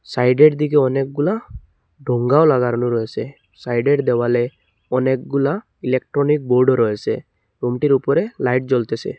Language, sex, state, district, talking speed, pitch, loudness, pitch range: Bengali, male, Assam, Hailakandi, 105 wpm, 130 Hz, -18 LUFS, 120-145 Hz